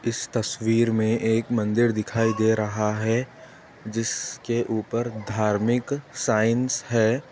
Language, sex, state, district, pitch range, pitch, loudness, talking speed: Hindi, male, Chhattisgarh, Bastar, 110-120 Hz, 115 Hz, -24 LUFS, 115 wpm